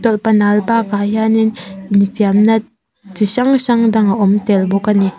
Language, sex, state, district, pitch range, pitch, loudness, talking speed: Mizo, female, Mizoram, Aizawl, 200-225 Hz, 210 Hz, -14 LUFS, 160 wpm